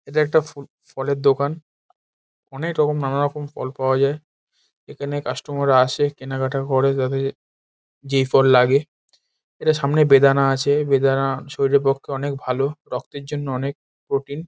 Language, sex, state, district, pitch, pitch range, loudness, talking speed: Bengali, male, West Bengal, Paschim Medinipur, 140 Hz, 135-145 Hz, -20 LUFS, 145 wpm